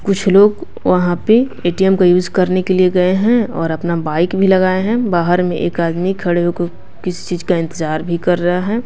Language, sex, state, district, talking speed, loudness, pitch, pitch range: Hindi, female, Bihar, West Champaran, 225 wpm, -15 LUFS, 180 Hz, 175-190 Hz